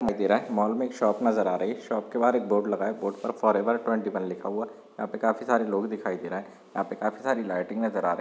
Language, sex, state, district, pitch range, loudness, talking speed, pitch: Hindi, male, Maharashtra, Pune, 100-115 Hz, -28 LUFS, 315 wpm, 110 Hz